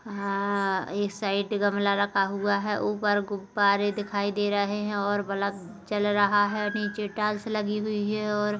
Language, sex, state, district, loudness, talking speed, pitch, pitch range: Hindi, female, Chhattisgarh, Kabirdham, -27 LUFS, 175 wpm, 205 Hz, 200-210 Hz